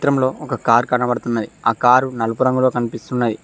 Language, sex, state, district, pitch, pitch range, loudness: Telugu, male, Telangana, Mahabubabad, 125 Hz, 115-130 Hz, -18 LUFS